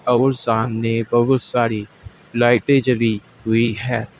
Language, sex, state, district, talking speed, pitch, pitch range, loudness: Hindi, male, Uttar Pradesh, Saharanpur, 115 wpm, 115 Hz, 110-120 Hz, -19 LUFS